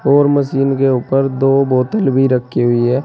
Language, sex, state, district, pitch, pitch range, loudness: Hindi, male, Uttar Pradesh, Saharanpur, 135 Hz, 130-135 Hz, -14 LUFS